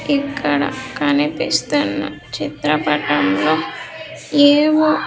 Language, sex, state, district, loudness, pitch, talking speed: Telugu, female, Andhra Pradesh, Sri Satya Sai, -17 LUFS, 165 Hz, 45 wpm